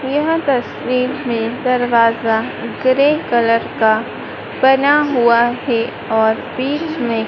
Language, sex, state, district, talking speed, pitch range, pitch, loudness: Hindi, female, Madhya Pradesh, Dhar, 105 wpm, 230-270 Hz, 245 Hz, -16 LUFS